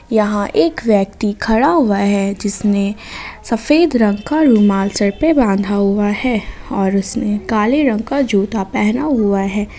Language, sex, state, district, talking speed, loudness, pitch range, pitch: Hindi, female, Jharkhand, Ranchi, 155 wpm, -15 LUFS, 200-245 Hz, 210 Hz